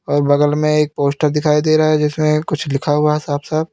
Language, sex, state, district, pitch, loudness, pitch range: Hindi, male, Uttar Pradesh, Lalitpur, 150 Hz, -16 LUFS, 145-155 Hz